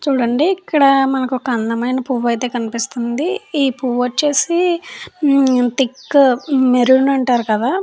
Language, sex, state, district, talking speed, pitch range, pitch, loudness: Telugu, female, Andhra Pradesh, Chittoor, 125 wpm, 245-290 Hz, 265 Hz, -16 LUFS